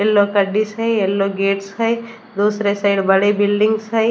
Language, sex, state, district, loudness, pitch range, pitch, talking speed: Hindi, female, Chandigarh, Chandigarh, -17 LUFS, 200-220 Hz, 205 Hz, 175 wpm